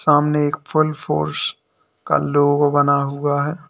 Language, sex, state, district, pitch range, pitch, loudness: Hindi, male, Uttar Pradesh, Lalitpur, 140-150 Hz, 145 Hz, -19 LUFS